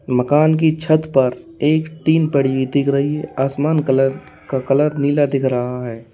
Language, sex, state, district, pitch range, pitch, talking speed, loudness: Hindi, male, Uttar Pradesh, Lalitpur, 130-155 Hz, 140 Hz, 185 wpm, -17 LUFS